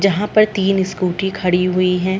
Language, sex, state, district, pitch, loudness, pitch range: Hindi, female, Chhattisgarh, Bilaspur, 190 Hz, -17 LUFS, 185-195 Hz